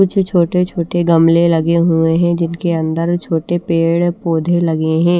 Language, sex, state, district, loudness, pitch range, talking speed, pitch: Hindi, female, Odisha, Nuapada, -14 LUFS, 165-175 Hz, 160 wpm, 170 Hz